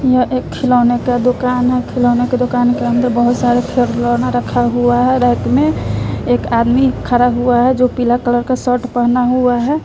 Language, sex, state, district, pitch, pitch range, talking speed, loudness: Hindi, female, Bihar, West Champaran, 245 Hz, 240-250 Hz, 195 wpm, -14 LUFS